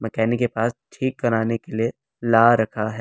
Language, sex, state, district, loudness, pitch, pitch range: Hindi, male, Delhi, New Delhi, -21 LUFS, 115 Hz, 110-120 Hz